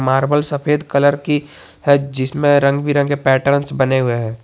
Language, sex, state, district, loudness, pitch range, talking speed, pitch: Hindi, male, Jharkhand, Garhwa, -16 LUFS, 135-145 Hz, 160 wpm, 140 Hz